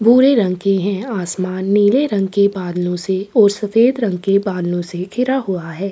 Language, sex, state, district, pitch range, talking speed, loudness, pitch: Hindi, female, Uttar Pradesh, Jalaun, 185-215 Hz, 195 wpm, -16 LUFS, 195 Hz